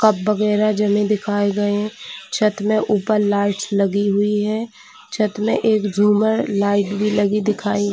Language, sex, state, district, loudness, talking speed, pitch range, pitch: Hindi, female, Chhattisgarh, Bilaspur, -19 LUFS, 150 wpm, 205-215 Hz, 210 Hz